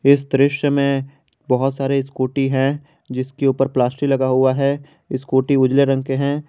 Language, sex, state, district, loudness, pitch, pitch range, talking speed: Hindi, male, Jharkhand, Garhwa, -18 LUFS, 135 Hz, 130-140 Hz, 165 wpm